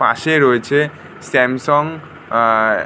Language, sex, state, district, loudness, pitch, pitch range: Bengali, male, West Bengal, North 24 Parganas, -15 LUFS, 140 Hz, 115-150 Hz